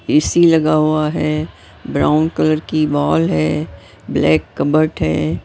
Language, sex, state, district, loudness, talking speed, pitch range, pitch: Hindi, female, Maharashtra, Mumbai Suburban, -16 LUFS, 130 wpm, 145-155 Hz, 155 Hz